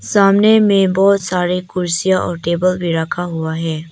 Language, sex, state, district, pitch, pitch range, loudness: Hindi, female, Arunachal Pradesh, Papum Pare, 180 Hz, 170-195 Hz, -15 LUFS